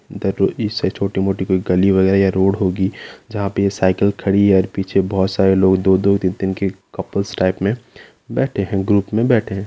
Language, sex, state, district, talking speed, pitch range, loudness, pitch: Hindi, male, Rajasthan, Nagaur, 185 wpm, 95-100 Hz, -17 LUFS, 95 Hz